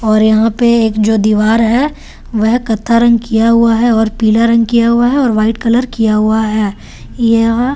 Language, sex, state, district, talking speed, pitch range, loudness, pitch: Hindi, female, Delhi, New Delhi, 210 wpm, 220-235 Hz, -11 LUFS, 230 Hz